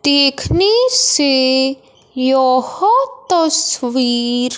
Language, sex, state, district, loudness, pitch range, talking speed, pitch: Hindi, male, Punjab, Fazilka, -14 LUFS, 255-375 Hz, 50 wpm, 275 Hz